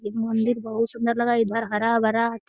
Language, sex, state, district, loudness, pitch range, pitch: Hindi, female, Bihar, Jamui, -23 LUFS, 225-235 Hz, 230 Hz